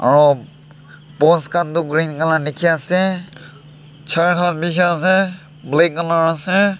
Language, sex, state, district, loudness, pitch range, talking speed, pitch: Nagamese, male, Nagaland, Dimapur, -16 LUFS, 150-175 Hz, 130 wpm, 165 Hz